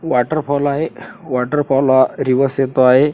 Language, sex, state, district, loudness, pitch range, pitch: Marathi, male, Maharashtra, Sindhudurg, -16 LUFS, 130-150 Hz, 135 Hz